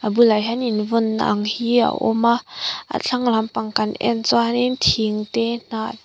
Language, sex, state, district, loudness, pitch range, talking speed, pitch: Mizo, female, Mizoram, Aizawl, -20 LUFS, 215-235 Hz, 190 wpm, 230 Hz